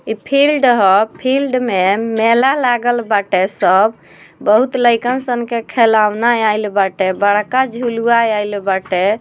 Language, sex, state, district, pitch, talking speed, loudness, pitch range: Bhojpuri, female, Bihar, Muzaffarpur, 230 Hz, 130 wpm, -14 LUFS, 205-245 Hz